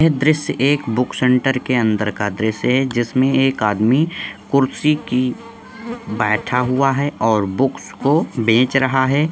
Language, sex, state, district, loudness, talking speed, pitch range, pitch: Hindi, male, Jharkhand, Sahebganj, -17 LUFS, 155 wpm, 115-140 Hz, 130 Hz